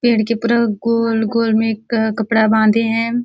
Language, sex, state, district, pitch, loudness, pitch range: Hindi, female, Chhattisgarh, Balrampur, 225 Hz, -16 LUFS, 220-230 Hz